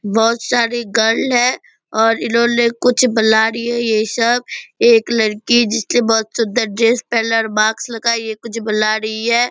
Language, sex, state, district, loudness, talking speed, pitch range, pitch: Hindi, female, Bihar, Purnia, -15 LUFS, 165 wpm, 220-235 Hz, 230 Hz